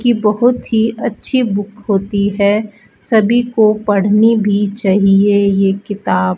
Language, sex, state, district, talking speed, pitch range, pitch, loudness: Hindi, female, Rajasthan, Bikaner, 140 wpm, 200-220 Hz, 210 Hz, -14 LUFS